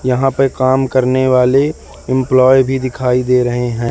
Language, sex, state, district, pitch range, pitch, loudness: Hindi, male, Madhya Pradesh, Katni, 125-130 Hz, 130 Hz, -13 LUFS